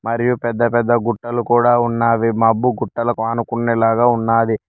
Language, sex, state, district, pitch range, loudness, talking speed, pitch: Telugu, male, Telangana, Mahabubabad, 115-120 Hz, -17 LUFS, 140 wpm, 115 Hz